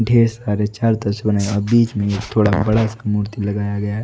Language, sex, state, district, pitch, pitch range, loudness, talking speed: Hindi, male, Odisha, Nuapada, 105 Hz, 105-110 Hz, -18 LUFS, 165 wpm